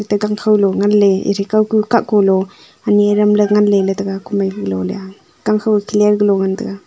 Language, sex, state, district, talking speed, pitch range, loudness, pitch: Wancho, female, Arunachal Pradesh, Longding, 225 wpm, 195-210 Hz, -15 LUFS, 205 Hz